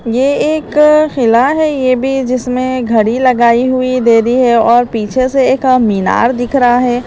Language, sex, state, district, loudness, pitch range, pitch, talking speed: Hindi, female, Uttar Pradesh, Lalitpur, -11 LUFS, 240-260 Hz, 255 Hz, 180 wpm